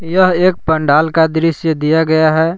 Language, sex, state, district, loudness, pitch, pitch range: Hindi, male, Jharkhand, Palamu, -13 LUFS, 160 Hz, 160-165 Hz